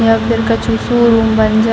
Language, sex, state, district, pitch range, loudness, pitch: Hindi, female, Bihar, Gopalganj, 215-225 Hz, -12 LUFS, 225 Hz